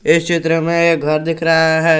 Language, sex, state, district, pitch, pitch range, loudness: Hindi, male, Jharkhand, Garhwa, 165 Hz, 160-165 Hz, -14 LUFS